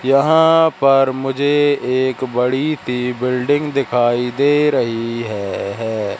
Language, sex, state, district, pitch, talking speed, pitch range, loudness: Hindi, male, Madhya Pradesh, Katni, 130 Hz, 115 wpm, 120-145 Hz, -16 LUFS